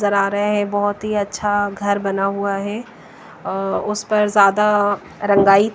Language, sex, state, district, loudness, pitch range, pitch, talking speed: Hindi, female, Bihar, West Champaran, -18 LUFS, 200-210 Hz, 205 Hz, 165 wpm